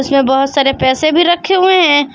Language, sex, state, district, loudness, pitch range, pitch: Hindi, female, Jharkhand, Palamu, -11 LUFS, 270-345 Hz, 290 Hz